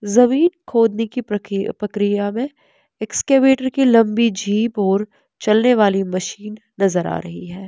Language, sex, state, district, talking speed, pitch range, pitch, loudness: Hindi, female, Bihar, West Champaran, 140 wpm, 205-250 Hz, 215 Hz, -18 LUFS